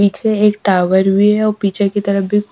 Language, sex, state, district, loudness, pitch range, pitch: Hindi, female, Punjab, Pathankot, -14 LUFS, 195-210 Hz, 205 Hz